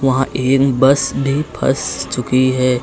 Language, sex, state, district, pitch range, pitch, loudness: Hindi, male, Uttar Pradesh, Lucknow, 130-135 Hz, 130 Hz, -16 LUFS